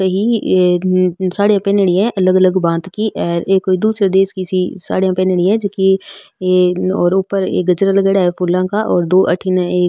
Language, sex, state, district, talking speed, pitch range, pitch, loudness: Marwari, female, Rajasthan, Nagaur, 195 wpm, 180-195 Hz, 185 Hz, -14 LUFS